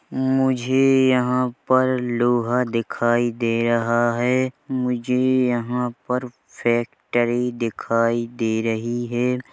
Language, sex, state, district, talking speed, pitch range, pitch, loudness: Hindi, male, Chhattisgarh, Bilaspur, 105 wpm, 120-125 Hz, 120 Hz, -21 LUFS